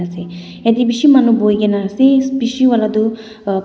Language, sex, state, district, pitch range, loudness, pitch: Nagamese, female, Nagaland, Dimapur, 200-245 Hz, -13 LUFS, 220 Hz